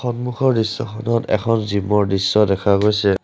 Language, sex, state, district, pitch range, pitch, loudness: Assamese, male, Assam, Sonitpur, 100-115 Hz, 105 Hz, -18 LUFS